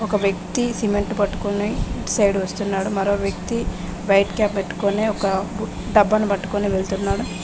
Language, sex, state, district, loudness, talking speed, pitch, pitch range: Telugu, female, Telangana, Mahabubabad, -21 LUFS, 130 wpm, 205 Hz, 195-210 Hz